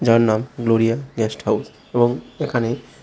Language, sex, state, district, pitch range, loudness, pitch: Bengali, male, Tripura, West Tripura, 115-120 Hz, -20 LUFS, 115 Hz